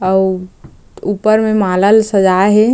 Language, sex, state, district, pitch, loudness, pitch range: Chhattisgarhi, female, Chhattisgarh, Jashpur, 200 Hz, -12 LUFS, 190-215 Hz